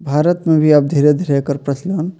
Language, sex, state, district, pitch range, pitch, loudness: Maithili, male, Bihar, Purnia, 145-165 Hz, 150 Hz, -15 LUFS